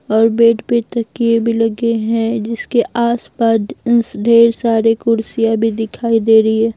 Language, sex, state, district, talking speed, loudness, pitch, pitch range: Hindi, female, Bihar, Patna, 150 wpm, -14 LUFS, 230 Hz, 225-235 Hz